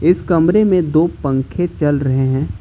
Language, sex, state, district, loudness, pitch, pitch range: Hindi, male, Uttar Pradesh, Lucknow, -15 LUFS, 155 Hz, 135-175 Hz